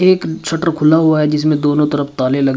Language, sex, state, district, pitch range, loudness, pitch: Hindi, male, Uttar Pradesh, Shamli, 145-160 Hz, -14 LUFS, 150 Hz